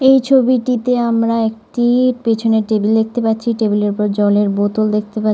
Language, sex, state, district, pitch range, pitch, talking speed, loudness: Bengali, female, West Bengal, North 24 Parganas, 215-240 Hz, 225 Hz, 180 wpm, -15 LUFS